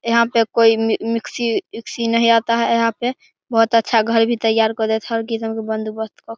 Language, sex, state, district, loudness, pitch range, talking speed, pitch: Hindi, male, Bihar, Begusarai, -18 LUFS, 225-230 Hz, 225 wpm, 230 Hz